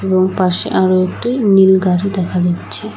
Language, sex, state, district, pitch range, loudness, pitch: Bengali, female, West Bengal, Alipurduar, 185-195 Hz, -14 LUFS, 185 Hz